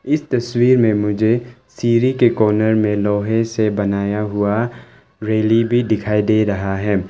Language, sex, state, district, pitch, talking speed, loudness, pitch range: Hindi, male, Arunachal Pradesh, Longding, 110 Hz, 150 wpm, -17 LUFS, 105-120 Hz